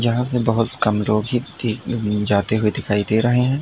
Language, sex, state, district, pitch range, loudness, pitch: Hindi, male, Uttar Pradesh, Lalitpur, 105-120 Hz, -20 LUFS, 115 Hz